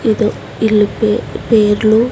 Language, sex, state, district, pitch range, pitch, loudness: Telugu, female, Andhra Pradesh, Sri Satya Sai, 215-220 Hz, 220 Hz, -14 LUFS